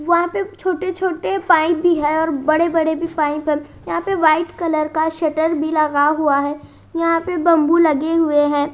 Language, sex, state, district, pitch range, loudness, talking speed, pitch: Hindi, female, Haryana, Jhajjar, 305-340 Hz, -17 LUFS, 200 wpm, 320 Hz